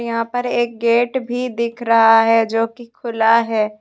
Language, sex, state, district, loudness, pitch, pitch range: Hindi, female, Jharkhand, Deoghar, -16 LUFS, 230 Hz, 225-240 Hz